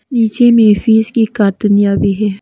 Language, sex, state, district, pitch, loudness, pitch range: Hindi, female, Arunachal Pradesh, Papum Pare, 215 Hz, -11 LUFS, 205-225 Hz